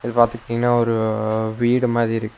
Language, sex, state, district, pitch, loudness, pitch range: Tamil, male, Tamil Nadu, Nilgiris, 115 Hz, -20 LUFS, 110-120 Hz